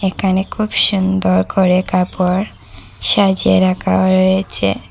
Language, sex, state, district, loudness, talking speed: Bengali, female, Assam, Hailakandi, -14 LUFS, 100 wpm